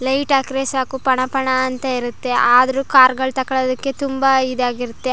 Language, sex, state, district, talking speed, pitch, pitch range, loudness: Kannada, female, Karnataka, Chamarajanagar, 150 wpm, 260 Hz, 255-270 Hz, -17 LUFS